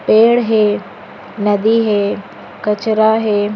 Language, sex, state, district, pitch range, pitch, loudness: Hindi, female, Chhattisgarh, Bastar, 210-220 Hz, 215 Hz, -14 LUFS